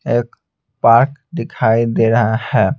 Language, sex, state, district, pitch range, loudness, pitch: Hindi, male, Bihar, Patna, 115-135 Hz, -15 LUFS, 115 Hz